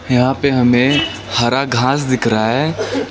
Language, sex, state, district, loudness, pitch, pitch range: Hindi, male, West Bengal, Darjeeling, -15 LUFS, 130 Hz, 120-140 Hz